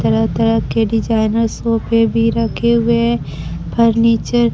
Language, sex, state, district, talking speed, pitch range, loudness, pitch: Hindi, female, Bihar, Kaimur, 145 wpm, 225-230 Hz, -15 LUFS, 230 Hz